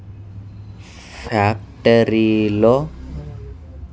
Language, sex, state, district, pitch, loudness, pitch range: Telugu, male, Andhra Pradesh, Sri Satya Sai, 100 Hz, -16 LUFS, 85-105 Hz